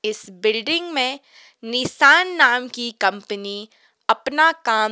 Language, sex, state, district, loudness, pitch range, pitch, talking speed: Hindi, female, Himachal Pradesh, Shimla, -18 LUFS, 215-275 Hz, 235 Hz, 110 wpm